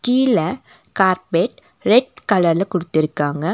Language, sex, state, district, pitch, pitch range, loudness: Tamil, female, Tamil Nadu, Nilgiris, 185 Hz, 165-210 Hz, -18 LUFS